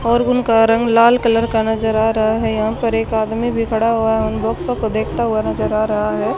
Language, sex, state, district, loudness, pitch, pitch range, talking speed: Hindi, female, Haryana, Charkhi Dadri, -16 LUFS, 225 Hz, 220-230 Hz, 255 wpm